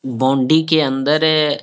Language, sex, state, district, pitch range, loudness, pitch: Hindi, male, Bihar, Saharsa, 135-155 Hz, -15 LUFS, 145 Hz